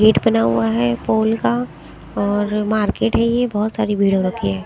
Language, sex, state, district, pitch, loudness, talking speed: Hindi, female, Haryana, Rohtak, 185 Hz, -18 LUFS, 195 wpm